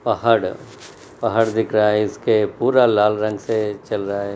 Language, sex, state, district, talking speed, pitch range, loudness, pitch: Hindi, male, Maharashtra, Chandrapur, 180 wpm, 105-110 Hz, -19 LUFS, 105 Hz